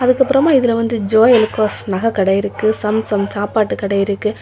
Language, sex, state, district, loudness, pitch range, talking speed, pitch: Tamil, female, Tamil Nadu, Kanyakumari, -15 LUFS, 200-230 Hz, 175 wpm, 215 Hz